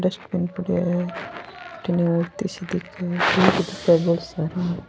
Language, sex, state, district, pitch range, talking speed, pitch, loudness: Rajasthani, female, Rajasthan, Churu, 175-190 Hz, 50 wpm, 180 Hz, -23 LUFS